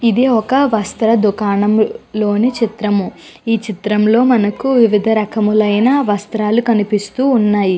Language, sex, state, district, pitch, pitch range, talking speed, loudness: Telugu, female, Andhra Pradesh, Guntur, 215 Hz, 210-235 Hz, 110 wpm, -14 LUFS